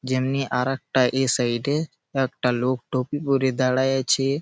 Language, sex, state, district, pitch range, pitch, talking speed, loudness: Bengali, male, West Bengal, Malda, 125-135 Hz, 130 Hz, 165 wpm, -23 LUFS